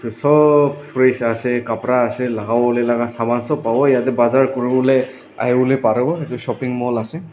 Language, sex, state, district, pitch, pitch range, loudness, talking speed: Nagamese, male, Nagaland, Dimapur, 125 Hz, 120-135 Hz, -17 LUFS, 190 wpm